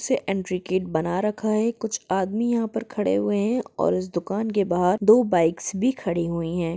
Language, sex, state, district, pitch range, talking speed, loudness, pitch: Hindi, female, Jharkhand, Jamtara, 175-220 Hz, 205 wpm, -23 LUFS, 195 Hz